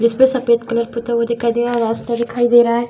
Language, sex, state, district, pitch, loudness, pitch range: Hindi, female, Bihar, Araria, 235 Hz, -16 LUFS, 235-240 Hz